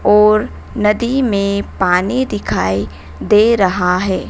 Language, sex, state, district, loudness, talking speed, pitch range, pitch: Hindi, female, Madhya Pradesh, Dhar, -14 LUFS, 110 wpm, 180-215 Hz, 200 Hz